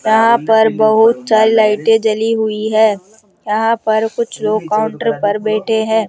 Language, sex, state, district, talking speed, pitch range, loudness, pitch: Hindi, female, Rajasthan, Jaipur, 160 wpm, 215-225 Hz, -14 LUFS, 220 Hz